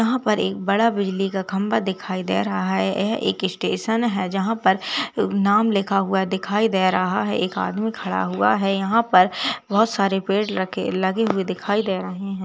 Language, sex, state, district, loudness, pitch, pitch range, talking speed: Hindi, female, Uttar Pradesh, Ghazipur, -21 LUFS, 195 Hz, 190-210 Hz, 195 wpm